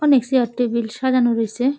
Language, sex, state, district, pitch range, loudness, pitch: Bengali, female, West Bengal, Jalpaiguri, 235-260 Hz, -19 LUFS, 250 Hz